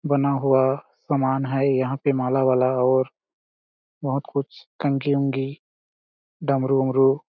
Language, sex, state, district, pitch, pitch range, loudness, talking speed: Hindi, male, Chhattisgarh, Balrampur, 135 Hz, 130-140 Hz, -22 LUFS, 105 wpm